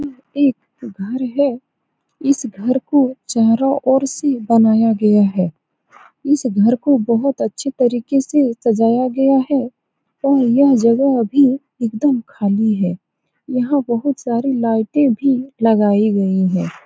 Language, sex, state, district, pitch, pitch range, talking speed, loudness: Hindi, female, Bihar, Saran, 250 Hz, 225-275 Hz, 140 wpm, -16 LUFS